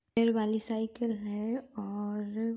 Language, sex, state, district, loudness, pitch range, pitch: Hindi, female, Uttar Pradesh, Varanasi, -33 LUFS, 210-230 Hz, 220 Hz